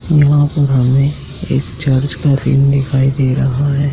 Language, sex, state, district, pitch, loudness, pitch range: Hindi, male, Madhya Pradesh, Dhar, 140 Hz, -14 LUFS, 135-145 Hz